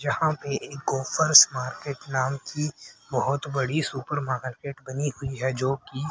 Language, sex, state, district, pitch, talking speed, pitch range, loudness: Hindi, male, Haryana, Rohtak, 140 Hz, 155 wpm, 130-145 Hz, -25 LUFS